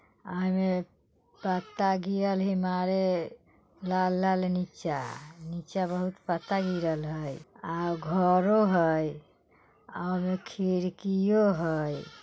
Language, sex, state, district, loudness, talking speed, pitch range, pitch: Bajjika, female, Bihar, Vaishali, -29 LUFS, 100 wpm, 170-190 Hz, 185 Hz